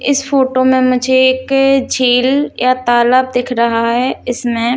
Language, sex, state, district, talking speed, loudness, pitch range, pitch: Hindi, female, Haryana, Charkhi Dadri, 165 wpm, -13 LUFS, 245-260 Hz, 255 Hz